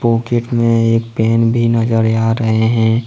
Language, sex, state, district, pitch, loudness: Hindi, male, Jharkhand, Ranchi, 115 Hz, -14 LUFS